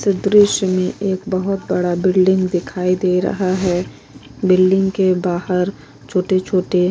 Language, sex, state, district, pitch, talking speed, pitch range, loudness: Hindi, female, Maharashtra, Chandrapur, 185 Hz, 150 wpm, 180-190 Hz, -17 LUFS